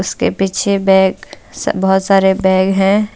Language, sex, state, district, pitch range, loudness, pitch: Hindi, female, Jharkhand, Deoghar, 190-195 Hz, -13 LUFS, 190 Hz